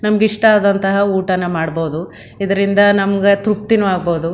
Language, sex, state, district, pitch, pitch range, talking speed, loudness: Kannada, female, Karnataka, Mysore, 200 Hz, 180-205 Hz, 110 wpm, -15 LUFS